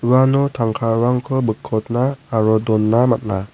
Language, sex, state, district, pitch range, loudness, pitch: Garo, male, Meghalaya, West Garo Hills, 110-125 Hz, -18 LUFS, 115 Hz